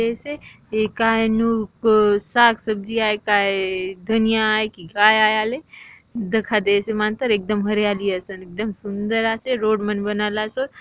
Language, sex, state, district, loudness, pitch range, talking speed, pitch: Halbi, female, Chhattisgarh, Bastar, -20 LUFS, 205-225 Hz, 160 wpm, 215 Hz